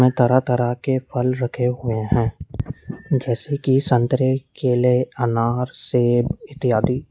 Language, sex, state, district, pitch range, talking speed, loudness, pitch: Hindi, male, Uttar Pradesh, Lalitpur, 120-130 Hz, 120 wpm, -20 LUFS, 125 Hz